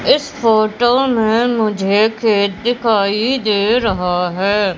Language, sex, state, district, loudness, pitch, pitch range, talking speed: Hindi, female, Madhya Pradesh, Katni, -15 LUFS, 220 Hz, 200-240 Hz, 115 wpm